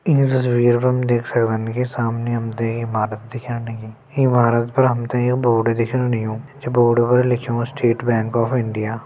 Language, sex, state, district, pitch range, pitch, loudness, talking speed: Garhwali, male, Uttarakhand, Uttarkashi, 115-125 Hz, 120 Hz, -19 LUFS, 190 wpm